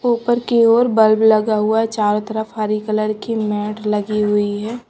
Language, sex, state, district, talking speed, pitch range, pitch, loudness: Hindi, female, Bihar, Kaimur, 185 wpm, 210-225 Hz, 215 Hz, -17 LUFS